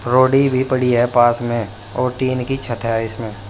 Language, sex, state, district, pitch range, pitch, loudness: Hindi, male, Uttar Pradesh, Saharanpur, 115-130 Hz, 120 Hz, -18 LUFS